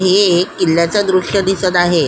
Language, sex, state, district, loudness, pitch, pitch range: Marathi, female, Maharashtra, Solapur, -14 LUFS, 185 Hz, 175-195 Hz